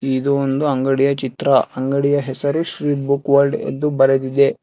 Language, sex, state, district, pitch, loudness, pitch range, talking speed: Kannada, male, Karnataka, Bangalore, 140 Hz, -18 LUFS, 135-140 Hz, 140 wpm